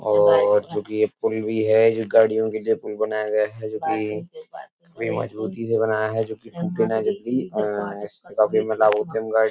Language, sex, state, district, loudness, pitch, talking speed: Hindi, male, Uttar Pradesh, Etah, -22 LUFS, 110 Hz, 140 wpm